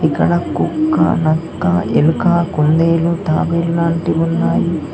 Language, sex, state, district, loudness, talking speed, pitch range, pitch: Telugu, male, Telangana, Mahabubabad, -15 LUFS, 85 wpm, 155-170 Hz, 165 Hz